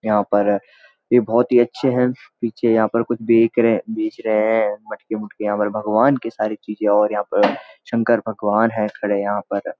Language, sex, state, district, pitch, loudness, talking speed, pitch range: Hindi, male, Uttarakhand, Uttarkashi, 110 Hz, -19 LUFS, 190 wpm, 105-115 Hz